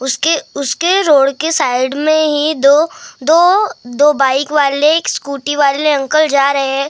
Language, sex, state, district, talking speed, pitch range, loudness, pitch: Hindi, male, Maharashtra, Gondia, 155 wpm, 275-310 Hz, -13 LUFS, 290 Hz